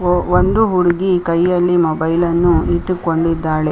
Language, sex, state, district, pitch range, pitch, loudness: Kannada, female, Karnataka, Chamarajanagar, 165-180 Hz, 175 Hz, -15 LUFS